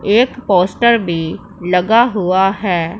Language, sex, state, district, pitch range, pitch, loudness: Hindi, female, Punjab, Pathankot, 180-225 Hz, 195 Hz, -14 LUFS